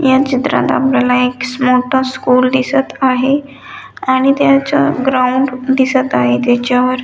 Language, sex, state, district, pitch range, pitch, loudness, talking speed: Marathi, female, Maharashtra, Dhule, 255-270 Hz, 260 Hz, -13 LUFS, 130 wpm